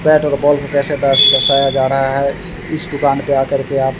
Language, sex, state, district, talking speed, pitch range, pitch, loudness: Hindi, male, Bihar, Vaishali, 255 wpm, 135-145 Hz, 140 Hz, -13 LUFS